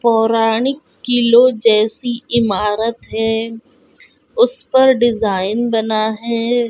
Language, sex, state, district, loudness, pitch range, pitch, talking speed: Hindi, female, Goa, North and South Goa, -15 LUFS, 225-245 Hz, 230 Hz, 80 wpm